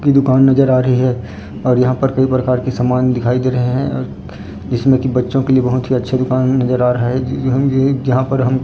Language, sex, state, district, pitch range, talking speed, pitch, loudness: Hindi, male, Chhattisgarh, Raipur, 125-130 Hz, 245 wpm, 130 Hz, -15 LUFS